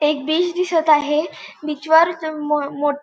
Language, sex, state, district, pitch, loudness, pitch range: Marathi, female, Goa, North and South Goa, 305 Hz, -18 LUFS, 295-325 Hz